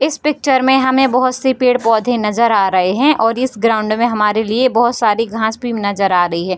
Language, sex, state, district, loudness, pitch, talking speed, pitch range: Hindi, female, Bihar, Bhagalpur, -14 LUFS, 230 Hz, 230 wpm, 215-255 Hz